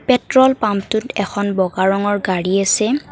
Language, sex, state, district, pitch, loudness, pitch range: Assamese, female, Assam, Kamrup Metropolitan, 205 Hz, -16 LUFS, 195-245 Hz